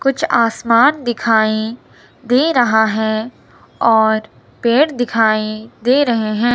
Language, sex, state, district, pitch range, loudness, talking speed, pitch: Hindi, male, Himachal Pradesh, Shimla, 220-245 Hz, -15 LUFS, 110 wpm, 230 Hz